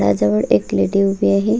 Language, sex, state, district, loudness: Marathi, female, Maharashtra, Solapur, -16 LUFS